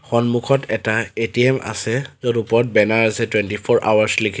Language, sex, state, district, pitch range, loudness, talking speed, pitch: Assamese, male, Assam, Sonitpur, 110-120 Hz, -18 LUFS, 165 wpm, 115 Hz